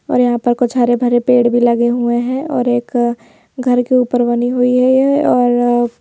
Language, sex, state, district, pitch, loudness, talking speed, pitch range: Hindi, female, Madhya Pradesh, Bhopal, 245 Hz, -14 LUFS, 250 wpm, 240-250 Hz